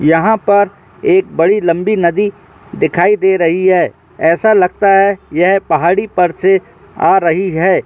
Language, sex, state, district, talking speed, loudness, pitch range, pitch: Hindi, male, Jharkhand, Jamtara, 155 wpm, -12 LUFS, 175-200 Hz, 190 Hz